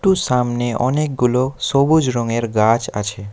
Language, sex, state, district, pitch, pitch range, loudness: Bengali, male, West Bengal, Alipurduar, 125 Hz, 115-140 Hz, -17 LUFS